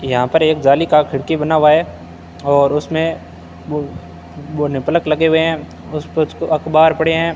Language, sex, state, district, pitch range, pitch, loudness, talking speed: Hindi, male, Rajasthan, Bikaner, 135-160 Hz, 150 Hz, -15 LUFS, 165 wpm